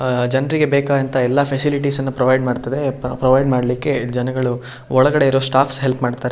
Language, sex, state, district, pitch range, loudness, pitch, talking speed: Kannada, male, Karnataka, Shimoga, 125-140 Hz, -17 LUFS, 130 Hz, 140 wpm